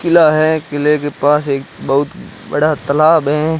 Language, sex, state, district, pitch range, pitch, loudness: Hindi, male, Rajasthan, Jaisalmer, 145-155 Hz, 150 Hz, -14 LUFS